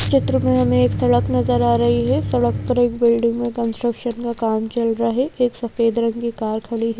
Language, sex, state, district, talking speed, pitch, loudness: Hindi, female, Madhya Pradesh, Bhopal, 230 wpm, 225 Hz, -19 LUFS